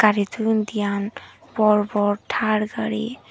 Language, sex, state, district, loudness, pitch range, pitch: Chakma, female, Tripura, Dhalai, -22 LUFS, 205-220 Hz, 215 Hz